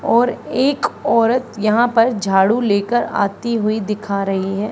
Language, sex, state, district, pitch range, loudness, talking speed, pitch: Hindi, female, Haryana, Charkhi Dadri, 200-235 Hz, -17 LUFS, 150 wpm, 215 Hz